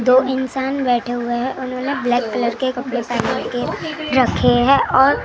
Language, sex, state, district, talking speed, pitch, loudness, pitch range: Hindi, female, Maharashtra, Gondia, 170 wpm, 255 Hz, -18 LUFS, 245-265 Hz